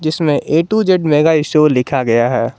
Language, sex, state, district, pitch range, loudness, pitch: Hindi, male, Jharkhand, Garhwa, 130-160 Hz, -13 LUFS, 150 Hz